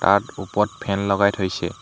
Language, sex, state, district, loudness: Assamese, male, Assam, Hailakandi, -22 LUFS